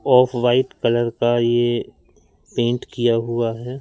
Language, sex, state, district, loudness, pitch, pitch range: Hindi, male, Madhya Pradesh, Katni, -20 LUFS, 120 Hz, 120-125 Hz